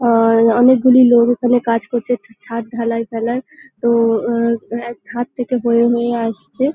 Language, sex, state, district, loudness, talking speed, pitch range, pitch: Bengali, female, West Bengal, North 24 Parganas, -16 LUFS, 150 wpm, 230-245 Hz, 235 Hz